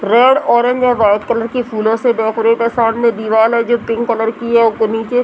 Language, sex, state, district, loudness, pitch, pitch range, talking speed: Hindi, female, Bihar, Muzaffarpur, -13 LUFS, 230 Hz, 225-240 Hz, 240 wpm